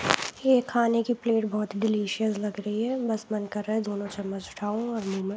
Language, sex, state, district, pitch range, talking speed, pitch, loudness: Hindi, female, Jharkhand, Sahebganj, 205-230 Hz, 235 wpm, 215 Hz, -28 LUFS